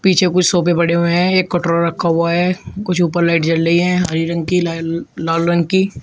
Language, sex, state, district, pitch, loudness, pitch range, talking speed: Hindi, male, Uttar Pradesh, Shamli, 170 Hz, -16 LUFS, 170-180 Hz, 230 wpm